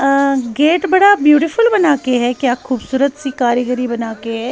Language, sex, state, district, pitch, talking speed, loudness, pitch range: Hindi, female, Haryana, Charkhi Dadri, 270 Hz, 185 wpm, -14 LUFS, 245-295 Hz